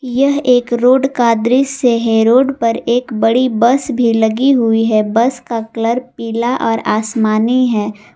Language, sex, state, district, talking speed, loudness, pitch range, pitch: Hindi, female, Jharkhand, Garhwa, 160 wpm, -13 LUFS, 225-255 Hz, 235 Hz